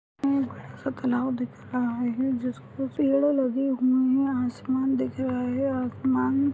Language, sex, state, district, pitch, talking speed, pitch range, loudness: Hindi, female, Maharashtra, Solapur, 260 Hz, 145 wpm, 250-270 Hz, -26 LUFS